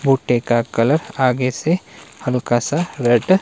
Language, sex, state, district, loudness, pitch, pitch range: Hindi, male, Himachal Pradesh, Shimla, -18 LUFS, 130 Hz, 120-155 Hz